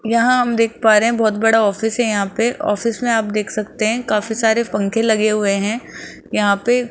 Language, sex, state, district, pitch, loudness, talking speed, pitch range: Hindi, female, Rajasthan, Jaipur, 225 Hz, -17 LUFS, 225 wpm, 210-235 Hz